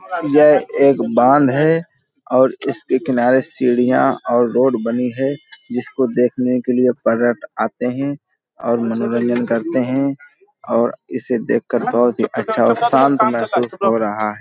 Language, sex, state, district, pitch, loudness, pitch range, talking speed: Hindi, male, Uttar Pradesh, Hamirpur, 125 Hz, -17 LUFS, 120-140 Hz, 150 wpm